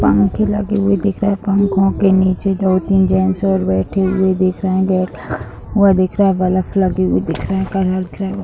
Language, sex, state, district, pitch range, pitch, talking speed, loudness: Hindi, female, Bihar, Sitamarhi, 185-195 Hz, 190 Hz, 235 wpm, -16 LUFS